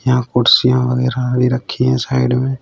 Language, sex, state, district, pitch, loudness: Hindi, male, Uttar Pradesh, Shamli, 125 Hz, -15 LUFS